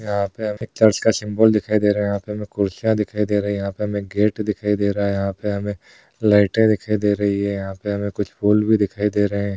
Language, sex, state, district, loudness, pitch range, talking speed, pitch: Hindi, male, Bihar, Kishanganj, -20 LUFS, 100-105 Hz, 275 wpm, 105 Hz